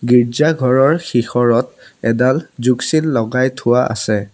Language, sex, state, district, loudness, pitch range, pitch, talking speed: Assamese, male, Assam, Sonitpur, -15 LUFS, 120-135 Hz, 125 Hz, 110 wpm